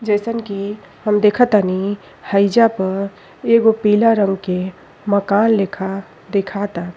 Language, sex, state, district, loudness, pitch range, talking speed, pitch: Bhojpuri, female, Uttar Pradesh, Ghazipur, -17 LUFS, 195-215 Hz, 110 wpm, 200 Hz